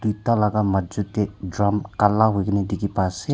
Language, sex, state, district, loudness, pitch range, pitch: Nagamese, male, Nagaland, Kohima, -22 LUFS, 100-105 Hz, 105 Hz